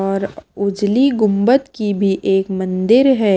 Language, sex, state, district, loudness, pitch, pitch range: Hindi, female, Himachal Pradesh, Shimla, -16 LUFS, 200 Hz, 195-235 Hz